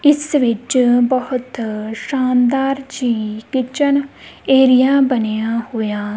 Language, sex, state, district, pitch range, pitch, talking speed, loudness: Punjabi, female, Punjab, Kapurthala, 225-270 Hz, 255 Hz, 90 wpm, -16 LUFS